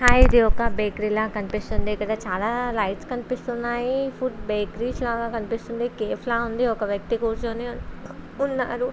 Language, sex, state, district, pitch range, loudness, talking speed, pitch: Telugu, female, Andhra Pradesh, Visakhapatnam, 215-245 Hz, -25 LUFS, 130 wpm, 235 Hz